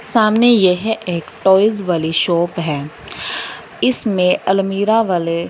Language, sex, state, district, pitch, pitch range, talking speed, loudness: Hindi, female, Punjab, Fazilka, 190 Hz, 170-215 Hz, 110 wpm, -16 LUFS